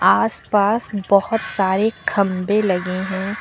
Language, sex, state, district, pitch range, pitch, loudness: Hindi, female, Uttar Pradesh, Lucknow, 190-210 Hz, 200 Hz, -19 LUFS